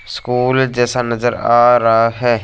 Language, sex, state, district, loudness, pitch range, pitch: Hindi, male, Punjab, Fazilka, -14 LUFS, 115-125 Hz, 120 Hz